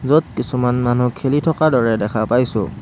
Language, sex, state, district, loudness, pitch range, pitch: Assamese, male, Assam, Hailakandi, -17 LUFS, 115-140 Hz, 125 Hz